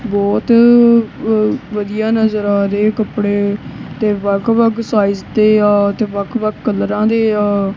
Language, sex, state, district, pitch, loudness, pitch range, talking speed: Punjabi, female, Punjab, Kapurthala, 215 Hz, -14 LUFS, 205-225 Hz, 145 wpm